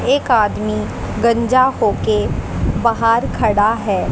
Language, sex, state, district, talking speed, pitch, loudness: Hindi, female, Haryana, Jhajjar, 115 wpm, 210 Hz, -16 LUFS